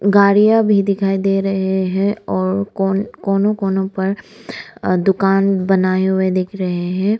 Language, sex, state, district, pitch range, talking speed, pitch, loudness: Hindi, female, Arunachal Pradesh, Lower Dibang Valley, 190-200 Hz, 135 wpm, 195 Hz, -16 LUFS